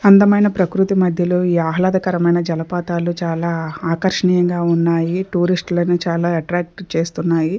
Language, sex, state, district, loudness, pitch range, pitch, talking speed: Telugu, female, Andhra Pradesh, Sri Satya Sai, -17 LUFS, 170-185 Hz, 175 Hz, 105 wpm